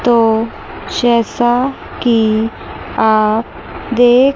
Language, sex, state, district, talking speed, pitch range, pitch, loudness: Hindi, female, Chandigarh, Chandigarh, 70 wpm, 220-245 Hz, 235 Hz, -14 LUFS